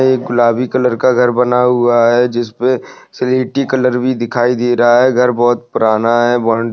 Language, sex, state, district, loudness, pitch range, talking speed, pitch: Hindi, male, West Bengal, Dakshin Dinajpur, -13 LUFS, 120-125 Hz, 185 wpm, 120 Hz